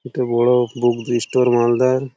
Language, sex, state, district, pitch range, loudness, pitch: Bengali, male, West Bengal, Malda, 120-125 Hz, -17 LUFS, 120 Hz